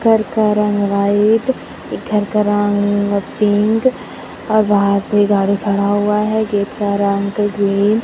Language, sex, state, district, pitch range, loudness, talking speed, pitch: Hindi, female, Chhattisgarh, Raipur, 200-215 Hz, -15 LUFS, 155 wpm, 205 Hz